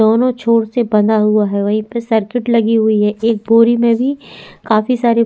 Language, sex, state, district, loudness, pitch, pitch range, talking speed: Hindi, female, Chhattisgarh, Sukma, -14 LUFS, 225 Hz, 215-235 Hz, 215 wpm